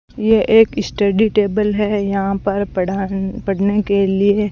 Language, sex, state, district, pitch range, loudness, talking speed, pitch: Hindi, female, Rajasthan, Bikaner, 195-210 Hz, -16 LUFS, 145 wpm, 200 Hz